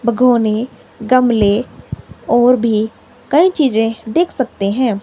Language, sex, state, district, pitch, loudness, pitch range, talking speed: Hindi, male, Himachal Pradesh, Shimla, 235 Hz, -14 LUFS, 220-255 Hz, 110 wpm